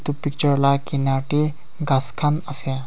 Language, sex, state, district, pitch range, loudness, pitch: Nagamese, male, Nagaland, Kohima, 135-150 Hz, -18 LUFS, 145 Hz